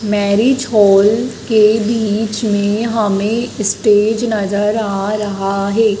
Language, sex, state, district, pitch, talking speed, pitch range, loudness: Hindi, female, Madhya Pradesh, Dhar, 210 Hz, 120 wpm, 205-220 Hz, -14 LUFS